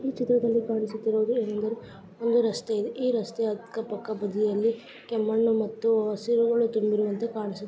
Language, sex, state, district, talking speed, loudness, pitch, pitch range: Kannada, male, Karnataka, Raichur, 115 wpm, -27 LUFS, 225 Hz, 215-230 Hz